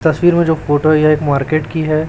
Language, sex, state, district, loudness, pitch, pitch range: Hindi, male, Chhattisgarh, Raipur, -14 LUFS, 155 Hz, 150-160 Hz